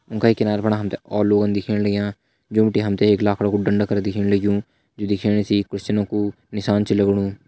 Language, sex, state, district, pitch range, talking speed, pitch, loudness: Hindi, male, Uttarakhand, Tehri Garhwal, 100-105 Hz, 240 wpm, 105 Hz, -20 LUFS